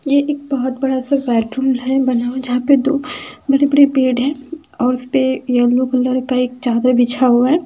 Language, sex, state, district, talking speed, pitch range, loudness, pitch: Hindi, female, Punjab, Fazilka, 210 wpm, 250-280 Hz, -16 LUFS, 260 Hz